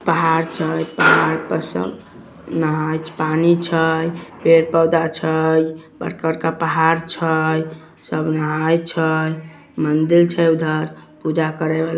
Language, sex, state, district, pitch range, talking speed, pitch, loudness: Magahi, male, Bihar, Samastipur, 160-165 Hz, 120 wpm, 160 Hz, -18 LUFS